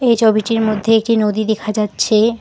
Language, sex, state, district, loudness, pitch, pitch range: Bengali, female, West Bengal, Alipurduar, -15 LUFS, 220 Hz, 215-225 Hz